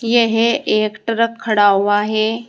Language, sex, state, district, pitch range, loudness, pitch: Hindi, female, Uttar Pradesh, Saharanpur, 215-230 Hz, -16 LUFS, 220 Hz